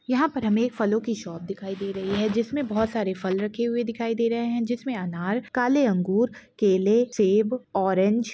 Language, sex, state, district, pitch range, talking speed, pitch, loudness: Hindi, female, Chhattisgarh, Balrampur, 195-240 Hz, 215 wpm, 225 Hz, -25 LUFS